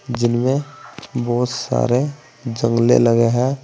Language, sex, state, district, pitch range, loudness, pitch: Hindi, male, Uttar Pradesh, Saharanpur, 120-135 Hz, -18 LUFS, 120 Hz